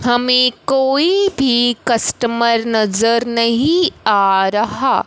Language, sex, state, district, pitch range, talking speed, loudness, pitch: Hindi, female, Punjab, Fazilka, 230-265 Hz, 95 wpm, -15 LUFS, 235 Hz